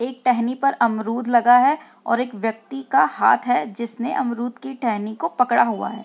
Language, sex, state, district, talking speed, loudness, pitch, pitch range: Hindi, female, Bihar, Sitamarhi, 210 wpm, -20 LUFS, 245 Hz, 235-260 Hz